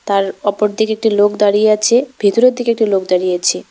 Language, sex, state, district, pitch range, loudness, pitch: Bengali, female, West Bengal, Cooch Behar, 200-220 Hz, -14 LUFS, 210 Hz